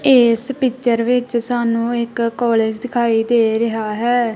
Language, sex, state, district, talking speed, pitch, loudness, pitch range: Punjabi, female, Punjab, Kapurthala, 135 wpm, 235 Hz, -17 LUFS, 230-245 Hz